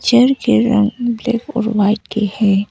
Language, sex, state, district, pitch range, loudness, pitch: Hindi, female, Arunachal Pradesh, Papum Pare, 210-240 Hz, -15 LUFS, 230 Hz